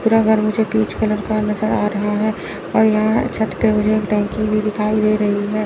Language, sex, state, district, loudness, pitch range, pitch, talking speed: Hindi, female, Chandigarh, Chandigarh, -18 LUFS, 210-220 Hz, 215 Hz, 225 wpm